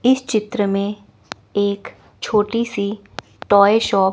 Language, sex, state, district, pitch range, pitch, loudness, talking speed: Hindi, female, Chandigarh, Chandigarh, 200-225 Hz, 205 Hz, -18 LUFS, 130 wpm